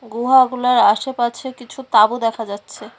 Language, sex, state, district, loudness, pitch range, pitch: Bengali, female, West Bengal, Cooch Behar, -16 LUFS, 225-255 Hz, 240 Hz